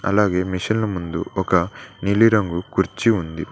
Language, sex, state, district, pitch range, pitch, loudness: Telugu, male, Telangana, Mahabubabad, 90-105 Hz, 95 Hz, -20 LUFS